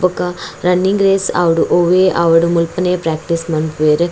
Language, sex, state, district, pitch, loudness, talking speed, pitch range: Tulu, female, Karnataka, Dakshina Kannada, 170 Hz, -14 LUFS, 130 wpm, 165-180 Hz